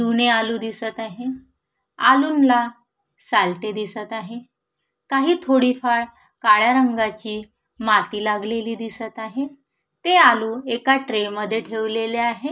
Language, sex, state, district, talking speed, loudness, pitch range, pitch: Marathi, female, Maharashtra, Nagpur, 115 wpm, -20 LUFS, 220-250 Hz, 230 Hz